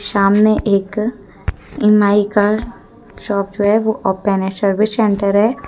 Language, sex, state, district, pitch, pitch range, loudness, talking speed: Hindi, female, Jharkhand, Deoghar, 205 Hz, 200-215 Hz, -15 LUFS, 125 wpm